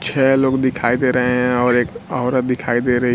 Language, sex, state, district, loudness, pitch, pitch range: Hindi, male, Bihar, Kaimur, -17 LUFS, 125 Hz, 125-130 Hz